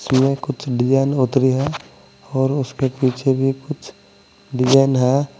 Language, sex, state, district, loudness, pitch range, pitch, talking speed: Hindi, male, Uttar Pradesh, Saharanpur, -18 LUFS, 130-140 Hz, 135 Hz, 135 wpm